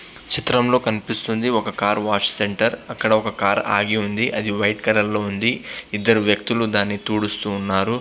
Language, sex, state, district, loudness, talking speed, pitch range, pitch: Telugu, male, Andhra Pradesh, Visakhapatnam, -19 LUFS, 125 wpm, 100-110 Hz, 105 Hz